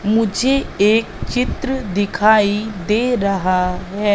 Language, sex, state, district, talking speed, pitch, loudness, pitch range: Hindi, female, Madhya Pradesh, Katni, 100 wpm, 210 Hz, -17 LUFS, 200-230 Hz